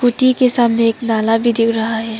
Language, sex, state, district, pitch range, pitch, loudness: Hindi, female, Arunachal Pradesh, Papum Pare, 225-240 Hz, 230 Hz, -15 LUFS